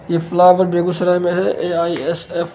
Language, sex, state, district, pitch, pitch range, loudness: Hindi, male, Bihar, Begusarai, 175 Hz, 170-180 Hz, -16 LUFS